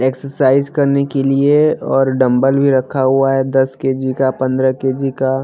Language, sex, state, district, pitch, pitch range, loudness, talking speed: Hindi, male, Haryana, Jhajjar, 135 Hz, 130-140 Hz, -15 LUFS, 175 wpm